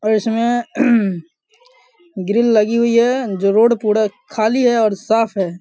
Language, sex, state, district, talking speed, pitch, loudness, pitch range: Hindi, male, Bihar, Samastipur, 150 wpm, 225 Hz, -16 LUFS, 215-240 Hz